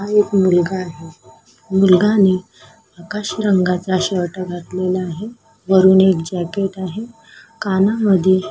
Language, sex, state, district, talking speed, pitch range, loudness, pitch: Marathi, female, Maharashtra, Sindhudurg, 105 wpm, 180-200 Hz, -16 LUFS, 190 Hz